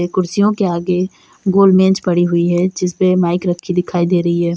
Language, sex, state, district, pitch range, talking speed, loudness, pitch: Hindi, female, Uttar Pradesh, Lalitpur, 175-185 Hz, 185 wpm, -15 LUFS, 180 Hz